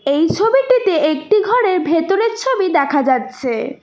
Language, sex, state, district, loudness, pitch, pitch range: Bengali, female, West Bengal, Cooch Behar, -15 LUFS, 350 Hz, 280-445 Hz